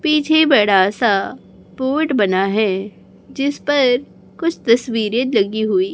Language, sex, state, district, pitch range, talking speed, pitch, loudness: Hindi, female, Chhattisgarh, Raipur, 205-285 Hz, 120 wpm, 240 Hz, -17 LUFS